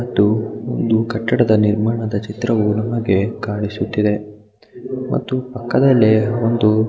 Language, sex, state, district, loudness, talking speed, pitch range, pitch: Kannada, male, Karnataka, Mysore, -18 LUFS, 85 wpm, 105-120 Hz, 110 Hz